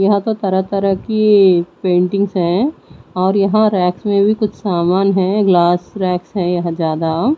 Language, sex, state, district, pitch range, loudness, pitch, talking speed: Hindi, female, Odisha, Nuapada, 175-205 Hz, -15 LUFS, 190 Hz, 165 wpm